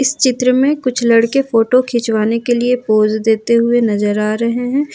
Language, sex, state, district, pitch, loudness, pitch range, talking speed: Hindi, female, Jharkhand, Ranchi, 235 Hz, -14 LUFS, 225-255 Hz, 205 wpm